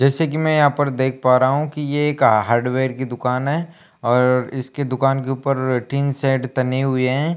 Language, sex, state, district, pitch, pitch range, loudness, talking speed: Hindi, male, Bihar, Kaimur, 135 Hz, 130-145 Hz, -19 LUFS, 210 wpm